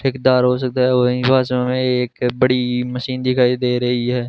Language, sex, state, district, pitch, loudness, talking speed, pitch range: Hindi, male, Rajasthan, Bikaner, 125 Hz, -17 LUFS, 195 wpm, 125-130 Hz